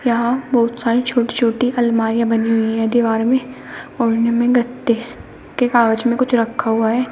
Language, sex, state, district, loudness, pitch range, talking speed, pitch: Hindi, female, Uttar Pradesh, Shamli, -17 LUFS, 230-245 Hz, 185 wpm, 235 Hz